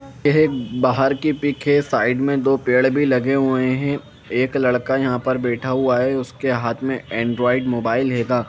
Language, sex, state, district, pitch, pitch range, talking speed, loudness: Hindi, male, Jharkhand, Jamtara, 130 Hz, 125-135 Hz, 185 wpm, -19 LUFS